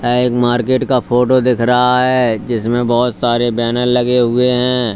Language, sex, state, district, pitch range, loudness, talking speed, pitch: Hindi, male, Uttar Pradesh, Lalitpur, 120-125 Hz, -14 LUFS, 180 wpm, 125 Hz